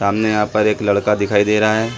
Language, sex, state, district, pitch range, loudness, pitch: Hindi, male, Chhattisgarh, Sarguja, 100-110 Hz, -16 LUFS, 105 Hz